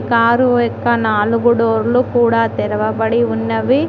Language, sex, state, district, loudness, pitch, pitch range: Telugu, female, Telangana, Mahabubabad, -15 LUFS, 230 Hz, 225-240 Hz